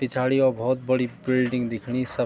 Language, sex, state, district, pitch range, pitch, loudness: Garhwali, male, Uttarakhand, Tehri Garhwal, 125-130 Hz, 125 Hz, -24 LUFS